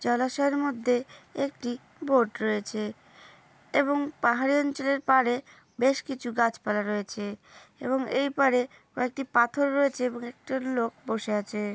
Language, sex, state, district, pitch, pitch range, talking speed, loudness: Bengali, female, West Bengal, Purulia, 250 Hz, 230-275 Hz, 125 wpm, -27 LUFS